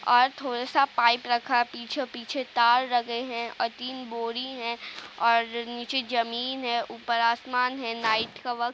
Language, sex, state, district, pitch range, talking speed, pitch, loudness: Hindi, female, Uttar Pradesh, Jalaun, 235-250 Hz, 170 wpm, 240 Hz, -27 LUFS